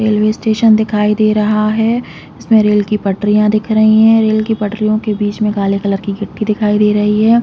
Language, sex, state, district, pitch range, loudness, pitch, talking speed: Hindi, female, Chhattisgarh, Raigarh, 210-220 Hz, -13 LUFS, 215 Hz, 220 wpm